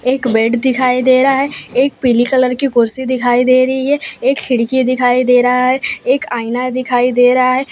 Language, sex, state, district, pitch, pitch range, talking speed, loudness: Hindi, female, Gujarat, Valsad, 255 Hz, 245-260 Hz, 210 wpm, -13 LUFS